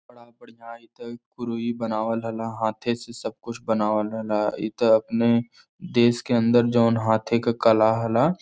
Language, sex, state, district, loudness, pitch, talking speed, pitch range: Bhojpuri, male, Uttar Pradesh, Varanasi, -23 LUFS, 115 Hz, 155 wpm, 110-120 Hz